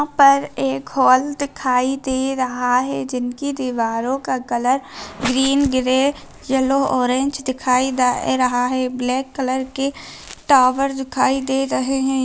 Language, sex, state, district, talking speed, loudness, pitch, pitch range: Hindi, female, Bihar, Bhagalpur, 130 wpm, -19 LUFS, 260 Hz, 255-270 Hz